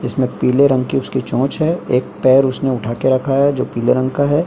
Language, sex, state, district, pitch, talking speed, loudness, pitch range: Hindi, male, Maharashtra, Chandrapur, 130 Hz, 240 wpm, -16 LUFS, 125-140 Hz